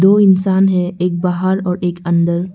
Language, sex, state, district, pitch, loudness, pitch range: Hindi, female, Arunachal Pradesh, Lower Dibang Valley, 180 Hz, -15 LUFS, 175-190 Hz